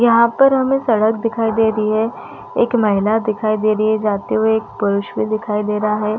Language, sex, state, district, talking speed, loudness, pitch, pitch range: Hindi, female, Chhattisgarh, Raigarh, 225 wpm, -17 LUFS, 220 Hz, 215-230 Hz